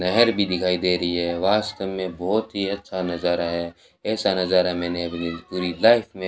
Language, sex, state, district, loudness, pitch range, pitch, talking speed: Hindi, male, Rajasthan, Bikaner, -23 LUFS, 85-100 Hz, 90 Hz, 200 wpm